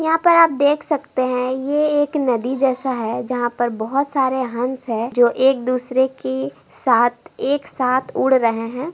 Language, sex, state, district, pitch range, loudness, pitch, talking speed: Hindi, female, Bihar, Begusarai, 240-285 Hz, -19 LUFS, 260 Hz, 180 wpm